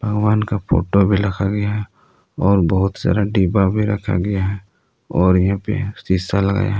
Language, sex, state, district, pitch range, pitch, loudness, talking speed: Hindi, male, Jharkhand, Palamu, 95-105 Hz, 100 Hz, -18 LUFS, 185 wpm